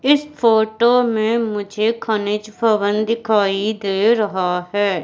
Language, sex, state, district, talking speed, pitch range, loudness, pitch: Hindi, female, Madhya Pradesh, Katni, 120 wpm, 205-230 Hz, -18 LUFS, 215 Hz